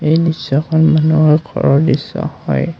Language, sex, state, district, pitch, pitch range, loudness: Assamese, male, Assam, Kamrup Metropolitan, 155 Hz, 150-160 Hz, -14 LUFS